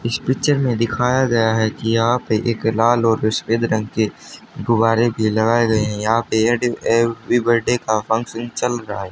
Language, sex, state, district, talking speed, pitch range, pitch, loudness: Hindi, male, Haryana, Charkhi Dadri, 190 wpm, 110-120 Hz, 115 Hz, -18 LUFS